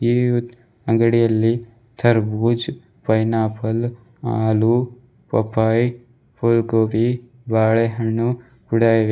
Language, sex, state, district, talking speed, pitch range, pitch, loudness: Kannada, male, Karnataka, Bidar, 70 wpm, 110-120 Hz, 115 Hz, -19 LUFS